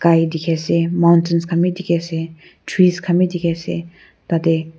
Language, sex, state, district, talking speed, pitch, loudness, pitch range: Nagamese, female, Nagaland, Kohima, 175 wpm, 170 Hz, -18 LUFS, 165-175 Hz